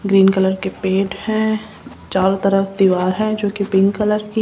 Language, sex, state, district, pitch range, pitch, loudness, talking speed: Hindi, female, Rajasthan, Jaipur, 190-210 Hz, 195 Hz, -17 LUFS, 190 wpm